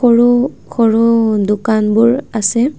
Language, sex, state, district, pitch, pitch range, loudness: Assamese, female, Assam, Kamrup Metropolitan, 230 Hz, 220-240 Hz, -13 LUFS